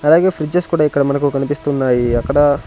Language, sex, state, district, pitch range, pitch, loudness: Telugu, male, Andhra Pradesh, Sri Satya Sai, 135-150 Hz, 145 Hz, -16 LUFS